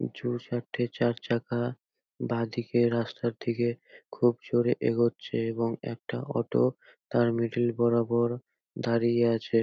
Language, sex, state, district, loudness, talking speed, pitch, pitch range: Bengali, male, West Bengal, North 24 Parganas, -29 LUFS, 105 wpm, 120 Hz, 115-120 Hz